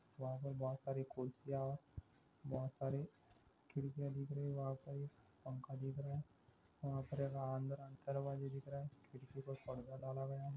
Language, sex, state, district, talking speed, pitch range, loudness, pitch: Hindi, male, Andhra Pradesh, Krishna, 145 wpm, 130-140 Hz, -47 LUFS, 135 Hz